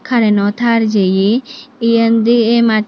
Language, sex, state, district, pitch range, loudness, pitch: Chakma, female, Tripura, Unakoti, 215-235 Hz, -13 LUFS, 230 Hz